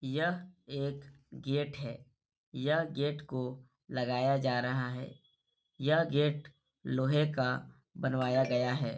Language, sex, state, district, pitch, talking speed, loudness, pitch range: Hindi, male, Bihar, Supaul, 140 Hz, 120 wpm, -33 LUFS, 130-145 Hz